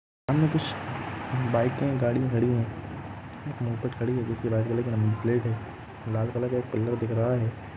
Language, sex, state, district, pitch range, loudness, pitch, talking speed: Hindi, male, Jharkhand, Sahebganj, 115-125 Hz, -28 LUFS, 120 Hz, 110 wpm